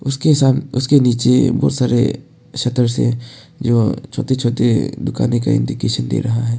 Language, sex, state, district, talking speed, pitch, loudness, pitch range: Hindi, male, Arunachal Pradesh, Papum Pare, 155 wpm, 125 Hz, -16 LUFS, 120-135 Hz